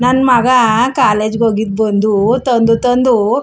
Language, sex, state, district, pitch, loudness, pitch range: Kannada, female, Karnataka, Chamarajanagar, 235 Hz, -12 LUFS, 215-250 Hz